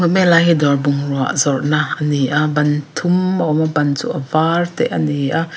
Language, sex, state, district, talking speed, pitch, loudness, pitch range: Mizo, female, Mizoram, Aizawl, 195 wpm, 150 Hz, -16 LUFS, 145-170 Hz